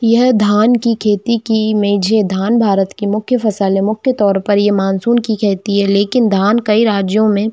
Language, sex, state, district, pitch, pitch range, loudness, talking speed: Hindi, female, Jharkhand, Jamtara, 210 Hz, 200-225 Hz, -13 LUFS, 200 wpm